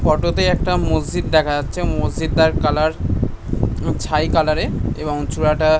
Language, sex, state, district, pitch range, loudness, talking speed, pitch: Bengali, male, West Bengal, North 24 Parganas, 145-155 Hz, -19 LUFS, 135 wpm, 150 Hz